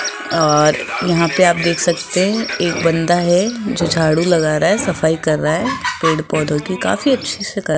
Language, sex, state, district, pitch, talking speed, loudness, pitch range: Hindi, female, Rajasthan, Jaipur, 170 Hz, 200 wpm, -16 LUFS, 160-200 Hz